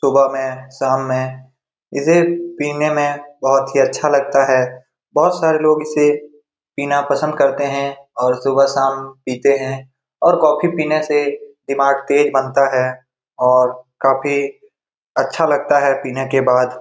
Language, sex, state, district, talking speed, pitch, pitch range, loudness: Hindi, male, Bihar, Supaul, 150 wpm, 140 Hz, 130-145 Hz, -16 LUFS